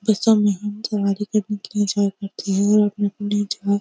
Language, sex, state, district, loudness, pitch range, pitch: Hindi, female, Uttar Pradesh, Jyotiba Phule Nagar, -21 LUFS, 200-210 Hz, 205 Hz